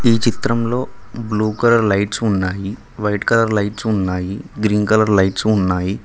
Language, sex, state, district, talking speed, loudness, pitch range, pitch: Telugu, male, Telangana, Mahabubabad, 140 wpm, -17 LUFS, 100-115 Hz, 105 Hz